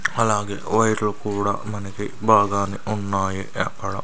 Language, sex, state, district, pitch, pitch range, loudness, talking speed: Telugu, male, Andhra Pradesh, Sri Satya Sai, 105 Hz, 100-110 Hz, -22 LUFS, 120 wpm